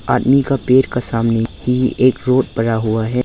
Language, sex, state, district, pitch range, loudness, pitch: Hindi, male, Arunachal Pradesh, Lower Dibang Valley, 115-130 Hz, -16 LUFS, 125 Hz